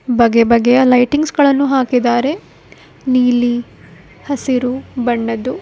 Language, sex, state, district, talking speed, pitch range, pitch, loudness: Kannada, female, Karnataka, Koppal, 85 wpm, 240-265 Hz, 250 Hz, -14 LUFS